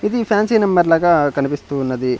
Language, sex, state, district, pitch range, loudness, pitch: Telugu, male, Andhra Pradesh, Sri Satya Sai, 140-205 Hz, -16 LUFS, 165 Hz